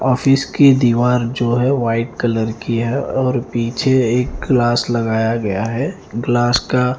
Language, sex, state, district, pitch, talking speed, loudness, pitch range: Hindi, male, Punjab, Fazilka, 120 Hz, 155 wpm, -16 LUFS, 115-130 Hz